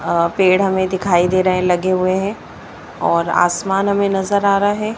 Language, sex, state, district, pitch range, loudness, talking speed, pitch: Hindi, male, Madhya Pradesh, Bhopal, 180-200 Hz, -16 LUFS, 205 wpm, 190 Hz